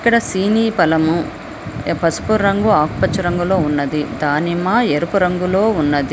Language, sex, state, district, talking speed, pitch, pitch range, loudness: Telugu, female, Telangana, Hyderabad, 115 wpm, 175 Hz, 155-200 Hz, -16 LUFS